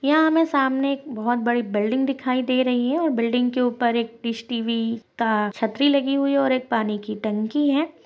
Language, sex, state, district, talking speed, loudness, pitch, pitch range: Hindi, female, Maharashtra, Dhule, 210 wpm, -22 LUFS, 245 Hz, 230-275 Hz